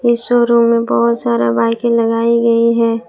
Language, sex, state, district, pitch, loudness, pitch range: Hindi, female, Jharkhand, Palamu, 230 Hz, -13 LUFS, 200-235 Hz